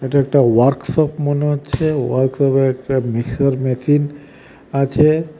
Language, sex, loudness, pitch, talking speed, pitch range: Bengali, male, -17 LUFS, 140 Hz, 120 wpm, 130-145 Hz